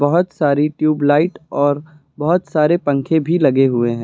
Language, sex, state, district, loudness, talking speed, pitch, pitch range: Hindi, male, Uttar Pradesh, Lucknow, -16 LUFS, 165 wpm, 150 Hz, 145-160 Hz